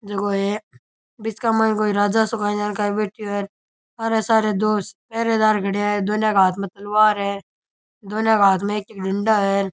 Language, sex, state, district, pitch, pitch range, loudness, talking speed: Rajasthani, male, Rajasthan, Churu, 210 Hz, 200-215 Hz, -20 LUFS, 205 wpm